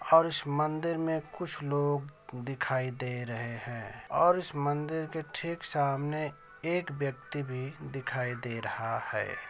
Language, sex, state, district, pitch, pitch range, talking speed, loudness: Hindi, male, Uttar Pradesh, Ghazipur, 145 Hz, 130-160 Hz, 145 wpm, -33 LUFS